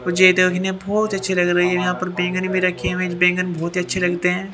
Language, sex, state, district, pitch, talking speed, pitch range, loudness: Hindi, male, Haryana, Jhajjar, 180 Hz, 290 wpm, 180-185 Hz, -19 LUFS